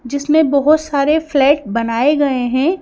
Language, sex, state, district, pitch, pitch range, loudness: Hindi, female, Madhya Pradesh, Bhopal, 285 Hz, 265-310 Hz, -14 LUFS